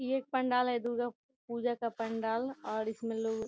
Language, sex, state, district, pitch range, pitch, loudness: Hindi, female, Bihar, Gopalganj, 225-250 Hz, 235 Hz, -35 LUFS